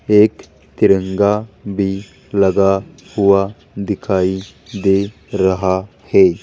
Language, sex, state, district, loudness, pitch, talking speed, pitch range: Hindi, male, Rajasthan, Jaipur, -16 LUFS, 100 Hz, 85 wpm, 95-100 Hz